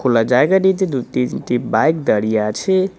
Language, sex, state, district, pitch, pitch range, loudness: Bengali, male, West Bengal, Cooch Behar, 125 Hz, 115-185 Hz, -17 LUFS